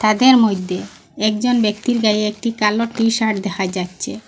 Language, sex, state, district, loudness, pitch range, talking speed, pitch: Bengali, female, Assam, Hailakandi, -17 LUFS, 210-230 Hz, 140 wpm, 215 Hz